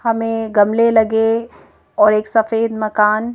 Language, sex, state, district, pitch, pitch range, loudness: Hindi, female, Madhya Pradesh, Bhopal, 225 Hz, 215-225 Hz, -15 LUFS